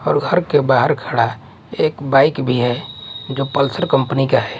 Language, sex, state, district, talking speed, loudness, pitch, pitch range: Hindi, male, Odisha, Nuapada, 185 wpm, -17 LUFS, 135 Hz, 125-140 Hz